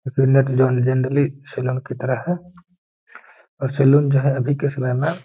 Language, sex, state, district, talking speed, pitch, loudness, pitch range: Hindi, male, Bihar, Gaya, 150 wpm, 135 Hz, -19 LUFS, 130-145 Hz